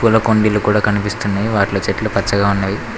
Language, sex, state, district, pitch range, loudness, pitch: Telugu, male, Telangana, Mahabubabad, 100-110 Hz, -16 LUFS, 105 Hz